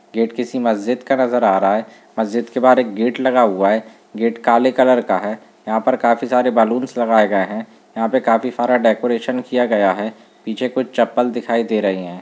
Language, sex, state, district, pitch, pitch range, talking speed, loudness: Hindi, male, Uttarakhand, Uttarkashi, 120 Hz, 110-125 Hz, 220 wpm, -17 LUFS